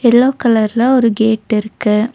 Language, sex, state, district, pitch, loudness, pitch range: Tamil, female, Tamil Nadu, Nilgiris, 225 Hz, -13 LUFS, 215-240 Hz